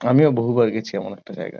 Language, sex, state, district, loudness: Bengali, male, West Bengal, Kolkata, -20 LUFS